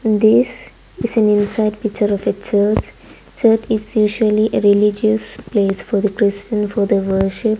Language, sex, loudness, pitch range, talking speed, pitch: English, female, -16 LUFS, 205-220 Hz, 150 wpm, 210 Hz